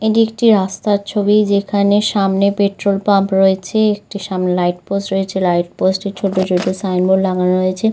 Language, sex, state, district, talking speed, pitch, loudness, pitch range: Bengali, female, West Bengal, Jhargram, 165 wpm, 195 Hz, -15 LUFS, 185-205 Hz